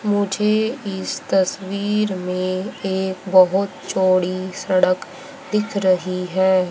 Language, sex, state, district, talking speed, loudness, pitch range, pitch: Hindi, female, Haryana, Rohtak, 100 wpm, -20 LUFS, 185-205 Hz, 190 Hz